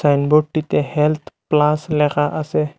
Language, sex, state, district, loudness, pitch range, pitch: Bengali, male, Assam, Hailakandi, -18 LUFS, 150-155 Hz, 150 Hz